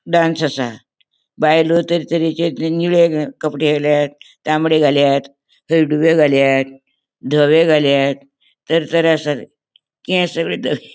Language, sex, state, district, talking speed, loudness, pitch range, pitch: Konkani, female, Goa, North and South Goa, 100 wpm, -15 LUFS, 140-165 Hz, 155 Hz